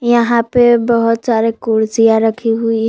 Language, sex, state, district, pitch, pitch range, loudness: Hindi, female, Jharkhand, Palamu, 230 Hz, 225-235 Hz, -13 LUFS